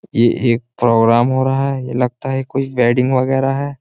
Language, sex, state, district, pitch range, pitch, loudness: Hindi, male, Uttar Pradesh, Jyotiba Phule Nagar, 120-135 Hz, 130 Hz, -16 LUFS